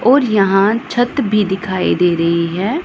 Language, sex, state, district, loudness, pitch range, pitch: Hindi, female, Punjab, Pathankot, -15 LUFS, 185-245 Hz, 200 Hz